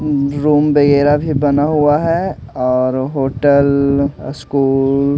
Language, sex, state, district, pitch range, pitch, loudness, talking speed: Hindi, male, Delhi, New Delhi, 135-150 Hz, 140 Hz, -14 LUFS, 115 wpm